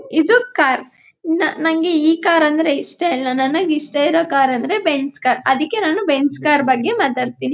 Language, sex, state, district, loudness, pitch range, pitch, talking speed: Kannada, female, Karnataka, Chamarajanagar, -16 LUFS, 275-335 Hz, 310 Hz, 165 wpm